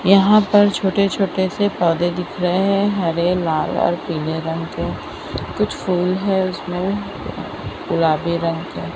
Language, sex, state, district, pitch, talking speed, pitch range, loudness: Hindi, female, Maharashtra, Mumbai Suburban, 180 Hz, 145 wpm, 170-195 Hz, -19 LUFS